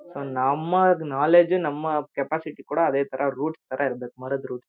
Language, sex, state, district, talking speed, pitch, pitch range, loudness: Kannada, male, Karnataka, Shimoga, 165 wpm, 145 Hz, 135-160 Hz, -24 LUFS